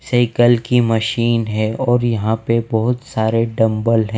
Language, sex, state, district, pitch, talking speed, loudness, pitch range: Hindi, male, Himachal Pradesh, Shimla, 115 Hz, 160 wpm, -17 LUFS, 110-120 Hz